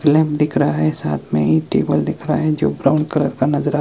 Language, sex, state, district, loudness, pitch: Hindi, male, Himachal Pradesh, Shimla, -18 LUFS, 145 Hz